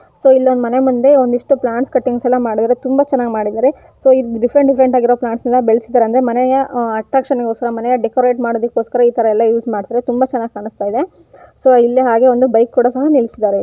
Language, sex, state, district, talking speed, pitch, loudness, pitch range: Kannada, female, Karnataka, Gulbarga, 190 wpm, 245 Hz, -14 LUFS, 230-260 Hz